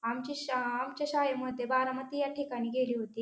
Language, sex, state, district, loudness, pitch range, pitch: Marathi, female, Maharashtra, Pune, -33 LUFS, 245-280 Hz, 255 Hz